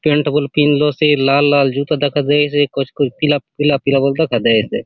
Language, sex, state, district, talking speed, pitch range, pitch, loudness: Halbi, male, Chhattisgarh, Bastar, 235 wpm, 140-150 Hz, 145 Hz, -15 LUFS